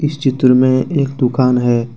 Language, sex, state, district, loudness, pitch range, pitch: Hindi, male, Jharkhand, Deoghar, -14 LUFS, 125-140 Hz, 130 Hz